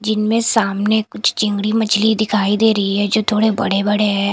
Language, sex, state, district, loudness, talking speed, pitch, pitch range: Hindi, female, Punjab, Kapurthala, -16 LUFS, 195 wpm, 210 Hz, 205-220 Hz